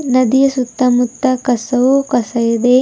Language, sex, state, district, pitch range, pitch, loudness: Kannada, female, Karnataka, Bidar, 245-260 Hz, 255 Hz, -14 LUFS